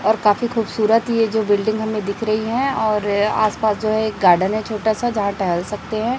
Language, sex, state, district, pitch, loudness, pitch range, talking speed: Hindi, male, Chhattisgarh, Raipur, 215 Hz, -19 LUFS, 210-220 Hz, 225 wpm